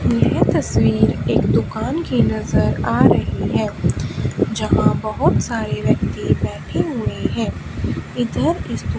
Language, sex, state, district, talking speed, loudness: Hindi, female, Haryana, Charkhi Dadri, 125 wpm, -19 LUFS